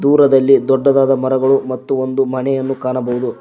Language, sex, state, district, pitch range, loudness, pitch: Kannada, male, Karnataka, Koppal, 130-135 Hz, -14 LUFS, 135 Hz